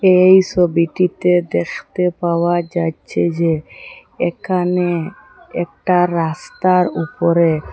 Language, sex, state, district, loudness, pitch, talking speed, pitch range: Bengali, female, Assam, Hailakandi, -17 LUFS, 175 Hz, 75 wpm, 170-180 Hz